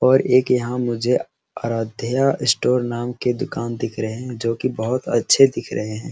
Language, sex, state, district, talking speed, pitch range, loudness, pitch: Hindi, male, Bihar, Araria, 185 wpm, 115-130 Hz, -20 LUFS, 125 Hz